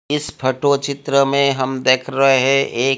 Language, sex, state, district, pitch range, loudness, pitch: Hindi, male, Odisha, Malkangiri, 130-140 Hz, -16 LUFS, 135 Hz